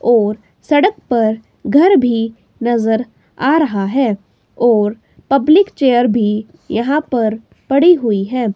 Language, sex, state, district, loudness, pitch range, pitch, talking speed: Hindi, female, Himachal Pradesh, Shimla, -14 LUFS, 220-275 Hz, 235 Hz, 125 wpm